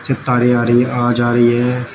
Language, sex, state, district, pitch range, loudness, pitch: Hindi, male, Uttar Pradesh, Shamli, 120-125 Hz, -14 LUFS, 120 Hz